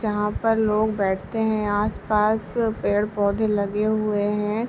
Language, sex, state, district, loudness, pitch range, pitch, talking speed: Hindi, female, Uttar Pradesh, Ghazipur, -23 LUFS, 205-220 Hz, 210 Hz, 140 wpm